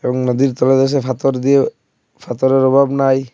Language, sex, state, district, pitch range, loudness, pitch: Bengali, male, Assam, Hailakandi, 130-135 Hz, -15 LUFS, 135 Hz